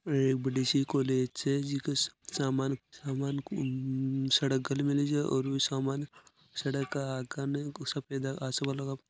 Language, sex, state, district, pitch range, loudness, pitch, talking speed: Marwari, male, Rajasthan, Nagaur, 135-140 Hz, -32 LUFS, 135 Hz, 140 wpm